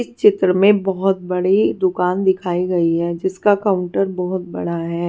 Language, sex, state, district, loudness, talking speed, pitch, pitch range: Hindi, female, Bihar, West Champaran, -18 LUFS, 165 wpm, 185 Hz, 180-195 Hz